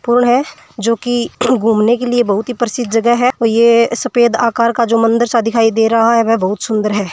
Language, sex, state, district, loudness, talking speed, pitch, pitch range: Marwari, female, Rajasthan, Churu, -13 LUFS, 225 wpm, 235 Hz, 225-240 Hz